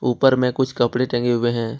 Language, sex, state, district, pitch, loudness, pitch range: Hindi, male, Jharkhand, Ranchi, 125 Hz, -19 LUFS, 120-130 Hz